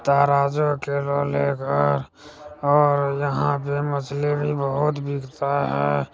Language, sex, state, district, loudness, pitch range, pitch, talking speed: Maithili, male, Bihar, Supaul, -22 LUFS, 140-145 Hz, 140 Hz, 100 wpm